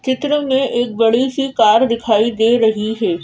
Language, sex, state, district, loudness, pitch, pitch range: Hindi, female, Madhya Pradesh, Bhopal, -15 LUFS, 235 Hz, 220-260 Hz